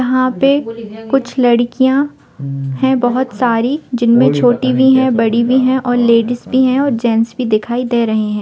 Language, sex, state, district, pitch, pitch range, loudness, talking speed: Bhojpuri, female, Bihar, Saran, 245 Hz, 230-260 Hz, -13 LUFS, 170 wpm